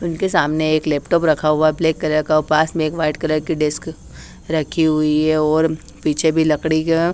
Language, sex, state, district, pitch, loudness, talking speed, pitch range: Hindi, female, Haryana, Charkhi Dadri, 155 Hz, -18 LUFS, 220 wpm, 155-160 Hz